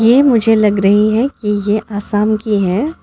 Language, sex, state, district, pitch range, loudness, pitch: Hindi, female, Arunachal Pradesh, Lower Dibang Valley, 205-225 Hz, -13 LUFS, 215 Hz